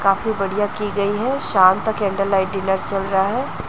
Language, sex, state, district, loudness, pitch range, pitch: Hindi, female, Chhattisgarh, Raipur, -19 LUFS, 195-210 Hz, 200 Hz